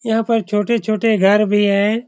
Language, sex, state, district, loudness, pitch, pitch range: Hindi, male, Bihar, Saran, -16 LUFS, 215 Hz, 205-225 Hz